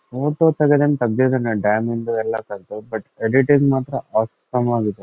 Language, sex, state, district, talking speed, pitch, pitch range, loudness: Kannada, male, Karnataka, Bellary, 120 wpm, 120 Hz, 110-135 Hz, -19 LUFS